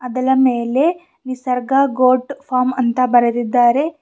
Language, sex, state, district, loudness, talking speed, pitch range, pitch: Kannada, female, Karnataka, Bidar, -16 LUFS, 105 wpm, 250-275 Hz, 255 Hz